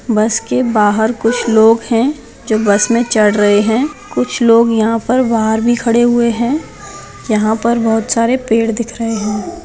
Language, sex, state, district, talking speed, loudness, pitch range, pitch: Hindi, female, Bihar, Jahanabad, 180 wpm, -13 LUFS, 220-235 Hz, 230 Hz